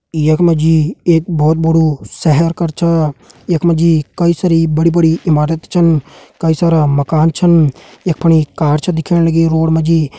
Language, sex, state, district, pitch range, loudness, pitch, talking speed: Hindi, male, Uttarakhand, Uttarkashi, 155-170 Hz, -13 LUFS, 165 Hz, 190 wpm